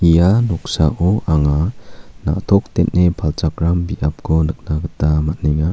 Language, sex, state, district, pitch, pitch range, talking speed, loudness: Garo, male, Meghalaya, South Garo Hills, 85 Hz, 75-90 Hz, 105 wpm, -17 LUFS